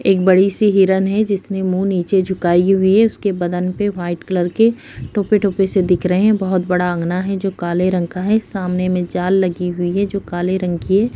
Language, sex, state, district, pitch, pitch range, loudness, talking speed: Hindi, female, Uttar Pradesh, Hamirpur, 190 Hz, 180-195 Hz, -17 LUFS, 225 wpm